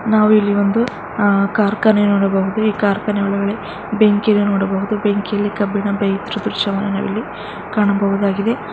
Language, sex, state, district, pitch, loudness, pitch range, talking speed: Kannada, female, Karnataka, Mysore, 205 Hz, -17 LUFS, 200-210 Hz, 105 wpm